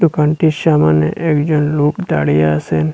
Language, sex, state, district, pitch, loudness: Bengali, male, Assam, Hailakandi, 150 Hz, -14 LUFS